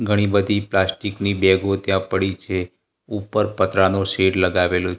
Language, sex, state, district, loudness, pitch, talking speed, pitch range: Gujarati, male, Gujarat, Gandhinagar, -20 LUFS, 95 Hz, 145 wpm, 95-100 Hz